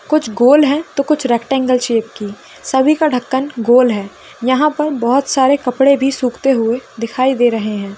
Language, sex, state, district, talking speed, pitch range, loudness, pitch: Hindi, female, West Bengal, Kolkata, 190 wpm, 235-280 Hz, -14 LUFS, 255 Hz